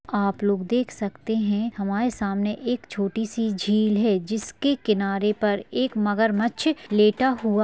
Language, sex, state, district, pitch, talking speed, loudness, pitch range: Hindi, female, Bihar, Lakhisarai, 215 Hz, 155 wpm, -24 LUFS, 205-230 Hz